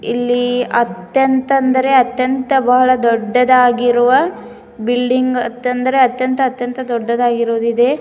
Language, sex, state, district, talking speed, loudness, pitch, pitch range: Kannada, female, Karnataka, Bidar, 75 wpm, -14 LUFS, 250 Hz, 240-260 Hz